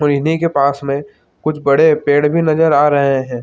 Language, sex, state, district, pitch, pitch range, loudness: Hindi, male, Chhattisgarh, Bilaspur, 145 Hz, 140-155 Hz, -14 LUFS